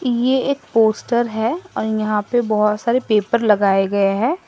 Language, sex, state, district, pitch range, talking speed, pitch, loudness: Hindi, female, Assam, Sonitpur, 210-245 Hz, 175 wpm, 225 Hz, -18 LUFS